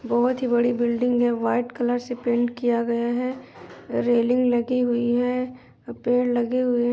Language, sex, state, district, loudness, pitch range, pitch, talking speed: Hindi, female, Uttar Pradesh, Etah, -23 LUFS, 240-250 Hz, 245 Hz, 175 wpm